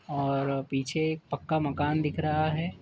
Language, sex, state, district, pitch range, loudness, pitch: Hindi, male, Uttar Pradesh, Jyotiba Phule Nagar, 140-155 Hz, -29 LUFS, 150 Hz